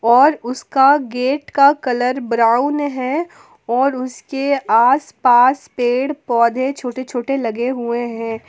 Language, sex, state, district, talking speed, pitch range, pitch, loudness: Hindi, female, Jharkhand, Palamu, 120 wpm, 240-275 Hz, 255 Hz, -17 LUFS